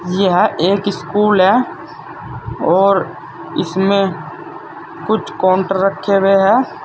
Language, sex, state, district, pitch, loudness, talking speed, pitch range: Hindi, male, Uttar Pradesh, Saharanpur, 195 Hz, -15 LUFS, 95 wpm, 180-200 Hz